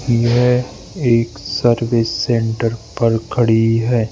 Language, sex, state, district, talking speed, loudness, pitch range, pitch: Hindi, male, Madhya Pradesh, Bhopal, 85 wpm, -16 LUFS, 115-120 Hz, 115 Hz